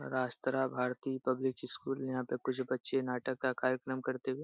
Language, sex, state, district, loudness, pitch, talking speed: Hindi, male, Bihar, Jahanabad, -36 LUFS, 130 Hz, 190 wpm